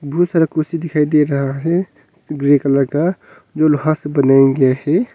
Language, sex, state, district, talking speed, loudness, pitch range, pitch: Hindi, male, Arunachal Pradesh, Longding, 200 wpm, -15 LUFS, 140-160 Hz, 150 Hz